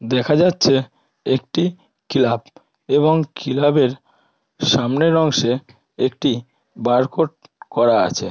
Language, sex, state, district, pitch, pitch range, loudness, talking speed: Bengali, female, West Bengal, Malda, 135 Hz, 125-160 Hz, -18 LUFS, 85 wpm